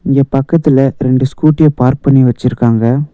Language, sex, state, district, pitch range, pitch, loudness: Tamil, male, Tamil Nadu, Nilgiris, 125-140 Hz, 135 Hz, -11 LUFS